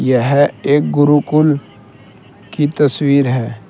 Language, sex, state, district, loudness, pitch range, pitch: Hindi, male, Uttar Pradesh, Saharanpur, -14 LUFS, 120-145 Hz, 140 Hz